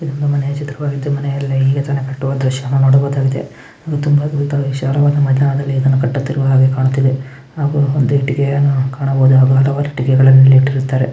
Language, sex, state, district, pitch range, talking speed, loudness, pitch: Kannada, male, Karnataka, Gulbarga, 135-140 Hz, 130 wpm, -14 LUFS, 135 Hz